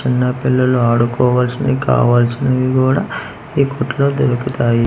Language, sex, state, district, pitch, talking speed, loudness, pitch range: Telugu, male, Andhra Pradesh, Manyam, 130 Hz, 100 wpm, -15 LUFS, 120-135 Hz